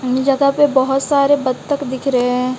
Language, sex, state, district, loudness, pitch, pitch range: Hindi, female, Odisha, Malkangiri, -16 LUFS, 270 Hz, 255-280 Hz